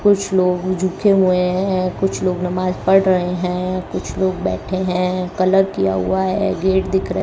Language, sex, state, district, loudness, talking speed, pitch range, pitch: Hindi, male, Rajasthan, Bikaner, -18 LUFS, 190 wpm, 180-190 Hz, 185 Hz